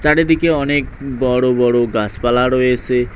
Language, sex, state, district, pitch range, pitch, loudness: Bengali, male, West Bengal, Cooch Behar, 120-145 Hz, 125 Hz, -15 LUFS